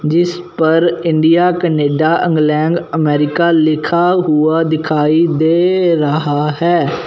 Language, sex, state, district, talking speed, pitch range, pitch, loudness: Hindi, male, Punjab, Fazilka, 100 wpm, 155-170 Hz, 160 Hz, -13 LUFS